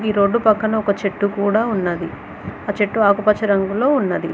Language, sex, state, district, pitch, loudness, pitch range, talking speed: Telugu, female, Telangana, Mahabubabad, 205 Hz, -18 LUFS, 200-220 Hz, 150 wpm